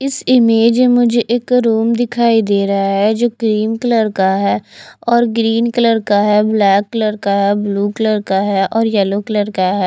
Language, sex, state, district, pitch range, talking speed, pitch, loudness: Hindi, female, Chandigarh, Chandigarh, 200-235 Hz, 175 wpm, 220 Hz, -14 LUFS